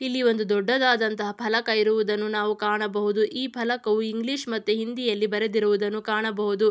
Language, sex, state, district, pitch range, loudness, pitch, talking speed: Kannada, female, Karnataka, Mysore, 210-230 Hz, -24 LUFS, 215 Hz, 125 wpm